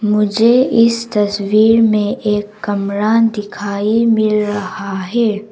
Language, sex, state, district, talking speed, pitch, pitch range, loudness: Hindi, female, Arunachal Pradesh, Papum Pare, 110 wpm, 210 Hz, 205-225 Hz, -14 LUFS